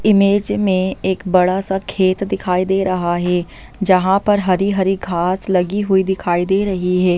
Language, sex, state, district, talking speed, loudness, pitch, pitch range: Hindi, female, Chhattisgarh, Bastar, 175 wpm, -17 LUFS, 190 Hz, 180-195 Hz